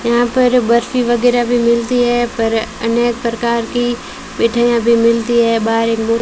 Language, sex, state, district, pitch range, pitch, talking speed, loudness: Hindi, female, Rajasthan, Bikaner, 230-240 Hz, 235 Hz, 175 wpm, -14 LUFS